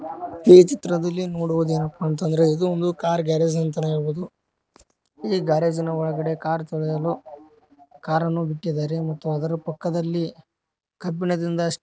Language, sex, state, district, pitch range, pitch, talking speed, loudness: Kannada, male, Karnataka, Koppal, 155-170 Hz, 165 Hz, 110 wpm, -22 LUFS